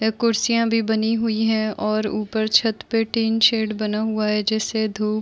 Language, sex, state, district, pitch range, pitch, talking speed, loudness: Hindi, female, Uttar Pradesh, Muzaffarnagar, 215-225 Hz, 220 Hz, 205 wpm, -21 LUFS